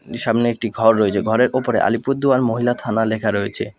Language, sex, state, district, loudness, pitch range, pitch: Bengali, male, West Bengal, Alipurduar, -18 LUFS, 110-125 Hz, 115 Hz